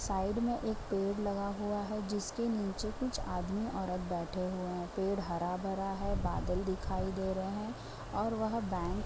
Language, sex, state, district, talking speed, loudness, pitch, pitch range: Hindi, female, Uttar Pradesh, Ghazipur, 185 wpm, -36 LUFS, 195 Hz, 185-210 Hz